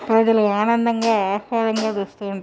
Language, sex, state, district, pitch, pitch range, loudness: Telugu, female, Telangana, Nalgonda, 220 Hz, 205-225 Hz, -19 LUFS